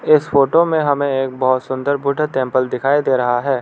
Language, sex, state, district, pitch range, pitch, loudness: Hindi, male, Arunachal Pradesh, Lower Dibang Valley, 130-145 Hz, 135 Hz, -17 LUFS